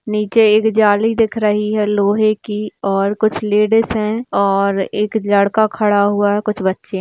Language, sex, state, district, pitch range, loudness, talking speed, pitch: Hindi, female, Rajasthan, Churu, 205-215 Hz, -15 LUFS, 180 wpm, 210 Hz